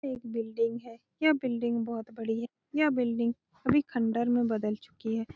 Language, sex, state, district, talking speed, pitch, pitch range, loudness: Hindi, female, Bihar, Saran, 190 wpm, 235 Hz, 230-255 Hz, -30 LUFS